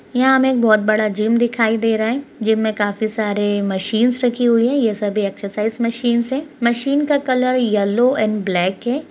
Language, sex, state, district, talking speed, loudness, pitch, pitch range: Hindi, female, Bihar, Darbhanga, 190 wpm, -17 LUFS, 225 Hz, 215-250 Hz